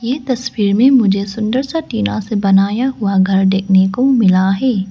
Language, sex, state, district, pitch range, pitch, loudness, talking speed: Hindi, female, Arunachal Pradesh, Lower Dibang Valley, 195-255 Hz, 210 Hz, -14 LUFS, 185 wpm